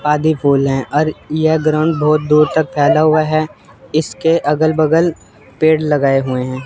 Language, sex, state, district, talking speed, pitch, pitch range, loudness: Hindi, male, Chandigarh, Chandigarh, 170 wpm, 155 Hz, 140-155 Hz, -14 LUFS